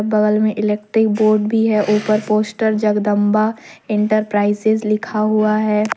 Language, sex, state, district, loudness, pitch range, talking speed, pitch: Hindi, female, Jharkhand, Deoghar, -16 LUFS, 210-215 Hz, 130 wpm, 215 Hz